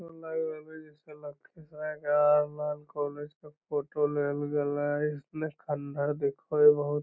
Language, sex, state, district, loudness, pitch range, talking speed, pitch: Magahi, male, Bihar, Lakhisarai, -30 LUFS, 145-155 Hz, 95 wpm, 150 Hz